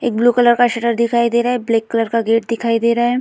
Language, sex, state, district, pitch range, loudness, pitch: Hindi, female, Uttar Pradesh, Budaun, 230-240 Hz, -16 LUFS, 235 Hz